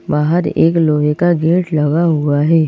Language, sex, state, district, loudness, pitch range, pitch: Hindi, female, Madhya Pradesh, Bhopal, -14 LUFS, 150-170 Hz, 160 Hz